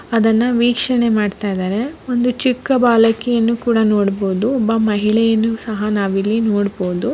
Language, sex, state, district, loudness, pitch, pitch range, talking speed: Kannada, female, Karnataka, Bellary, -14 LUFS, 225 Hz, 205-240 Hz, 120 wpm